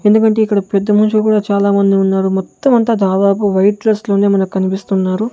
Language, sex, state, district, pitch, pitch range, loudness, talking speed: Telugu, male, Andhra Pradesh, Sri Satya Sai, 200 Hz, 195-215 Hz, -13 LUFS, 180 wpm